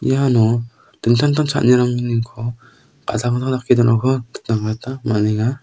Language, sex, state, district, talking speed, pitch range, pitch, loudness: Garo, male, Meghalaya, South Garo Hills, 115 wpm, 115-130 Hz, 120 Hz, -18 LUFS